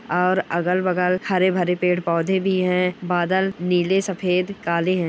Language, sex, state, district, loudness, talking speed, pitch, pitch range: Hindi, male, Bihar, Bhagalpur, -21 LUFS, 140 wpm, 180 Hz, 180-190 Hz